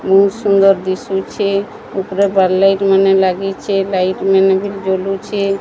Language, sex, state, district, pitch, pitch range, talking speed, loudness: Odia, female, Odisha, Sambalpur, 195 Hz, 190-195 Hz, 120 wpm, -14 LUFS